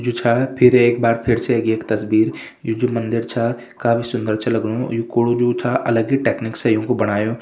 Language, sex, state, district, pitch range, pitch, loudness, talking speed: Hindi, male, Uttarakhand, Uttarkashi, 115-120 Hz, 115 Hz, -18 LUFS, 220 wpm